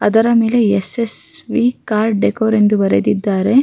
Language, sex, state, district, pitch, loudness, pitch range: Kannada, female, Karnataka, Raichur, 215 Hz, -15 LUFS, 200-230 Hz